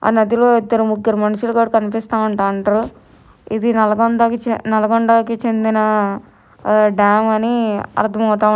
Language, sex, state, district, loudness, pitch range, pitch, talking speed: Telugu, female, Telangana, Nalgonda, -16 LUFS, 215-230 Hz, 220 Hz, 110 wpm